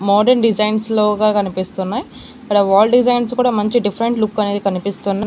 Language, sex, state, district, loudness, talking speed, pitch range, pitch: Telugu, female, Andhra Pradesh, Annamaya, -16 LUFS, 160 wpm, 200-235 Hz, 210 Hz